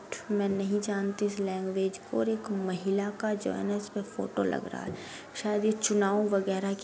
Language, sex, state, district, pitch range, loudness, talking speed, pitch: Hindi, female, Bihar, Gopalganj, 195-210 Hz, -31 LUFS, 220 wpm, 200 Hz